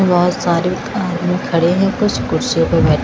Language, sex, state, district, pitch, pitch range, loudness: Hindi, female, Himachal Pradesh, Shimla, 180 Hz, 175-195 Hz, -16 LUFS